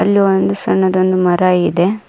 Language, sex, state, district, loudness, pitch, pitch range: Kannada, female, Karnataka, Koppal, -14 LUFS, 185 Hz, 180-200 Hz